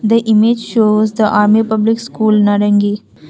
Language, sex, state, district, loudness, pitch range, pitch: English, female, Assam, Kamrup Metropolitan, -12 LUFS, 210-225 Hz, 215 Hz